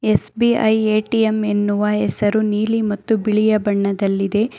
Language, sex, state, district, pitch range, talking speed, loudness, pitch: Kannada, female, Karnataka, Bangalore, 205-220 Hz, 105 wpm, -18 LUFS, 215 Hz